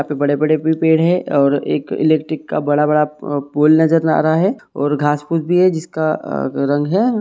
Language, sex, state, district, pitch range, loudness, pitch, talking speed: Hindi, male, Jharkhand, Sahebganj, 145-165 Hz, -16 LUFS, 155 Hz, 235 wpm